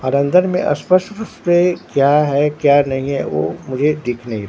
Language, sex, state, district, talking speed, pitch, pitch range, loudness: Hindi, male, Bihar, Katihar, 200 wpm, 140 Hz, 130-175 Hz, -16 LUFS